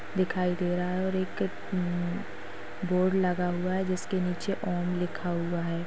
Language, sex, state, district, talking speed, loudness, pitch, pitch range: Hindi, female, Maharashtra, Sindhudurg, 175 wpm, -30 LUFS, 180 Hz, 170-185 Hz